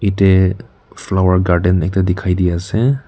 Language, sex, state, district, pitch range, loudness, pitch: Nagamese, male, Nagaland, Kohima, 90-100 Hz, -15 LUFS, 95 Hz